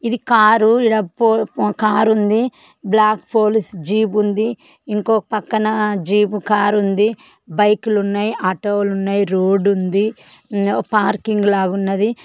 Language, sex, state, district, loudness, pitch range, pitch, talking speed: Telugu, female, Telangana, Karimnagar, -17 LUFS, 200-220 Hz, 210 Hz, 125 wpm